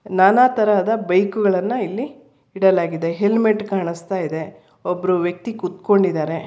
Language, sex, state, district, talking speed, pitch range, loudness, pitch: Kannada, female, Karnataka, Bangalore, 110 wpm, 175-210 Hz, -19 LUFS, 190 Hz